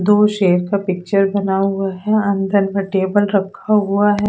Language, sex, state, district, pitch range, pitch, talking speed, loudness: Hindi, female, Odisha, Sambalpur, 195-205 Hz, 200 Hz, 180 wpm, -17 LUFS